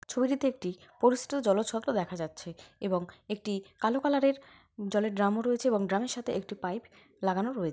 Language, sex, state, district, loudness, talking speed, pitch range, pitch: Bengali, female, West Bengal, Paschim Medinipur, -31 LUFS, 170 wpm, 195-250 Hz, 210 Hz